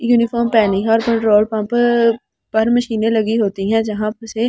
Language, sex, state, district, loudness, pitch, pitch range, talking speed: Hindi, female, Delhi, New Delhi, -16 LUFS, 225 Hz, 215-235 Hz, 175 wpm